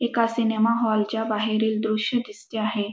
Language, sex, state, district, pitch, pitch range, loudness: Marathi, female, Maharashtra, Dhule, 220 Hz, 215-230 Hz, -24 LUFS